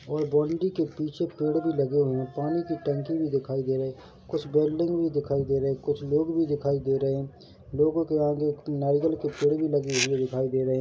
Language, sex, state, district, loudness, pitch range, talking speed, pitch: Hindi, male, Chhattisgarh, Bilaspur, -27 LUFS, 135-155 Hz, 240 wpm, 145 Hz